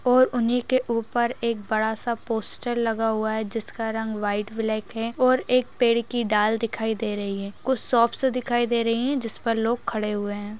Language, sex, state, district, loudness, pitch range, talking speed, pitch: Hindi, female, Bihar, Darbhanga, -24 LUFS, 220-240 Hz, 210 wpm, 230 Hz